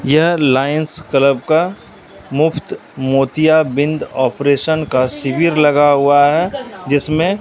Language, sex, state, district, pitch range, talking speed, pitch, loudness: Hindi, male, Bihar, Katihar, 140-160 Hz, 105 wpm, 150 Hz, -14 LUFS